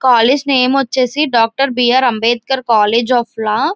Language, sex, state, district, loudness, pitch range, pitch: Telugu, female, Andhra Pradesh, Visakhapatnam, -13 LUFS, 230-265 Hz, 250 Hz